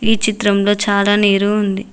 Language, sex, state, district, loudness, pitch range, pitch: Telugu, female, Telangana, Mahabubabad, -14 LUFS, 200-215 Hz, 205 Hz